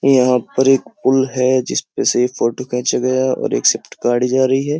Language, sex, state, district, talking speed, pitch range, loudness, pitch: Hindi, male, Uttar Pradesh, Jyotiba Phule Nagar, 250 wpm, 125-130 Hz, -16 LUFS, 130 Hz